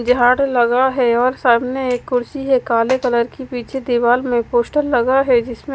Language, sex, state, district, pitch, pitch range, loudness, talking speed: Hindi, female, Odisha, Malkangiri, 250 Hz, 240-260 Hz, -16 LUFS, 210 wpm